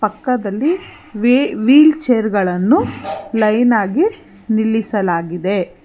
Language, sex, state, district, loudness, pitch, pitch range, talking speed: Kannada, female, Karnataka, Bangalore, -15 LUFS, 220 Hz, 200-255 Hz, 80 wpm